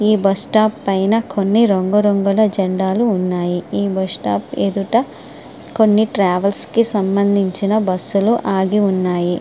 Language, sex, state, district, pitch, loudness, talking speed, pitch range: Telugu, female, Andhra Pradesh, Srikakulam, 200 Hz, -16 LUFS, 130 wpm, 190-215 Hz